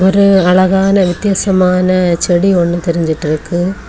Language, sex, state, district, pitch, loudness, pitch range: Tamil, female, Tamil Nadu, Kanyakumari, 185 Hz, -12 LUFS, 175-190 Hz